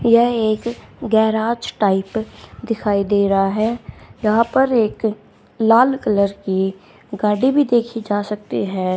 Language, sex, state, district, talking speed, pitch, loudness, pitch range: Hindi, female, Haryana, Rohtak, 135 wpm, 220 Hz, -18 LUFS, 205-235 Hz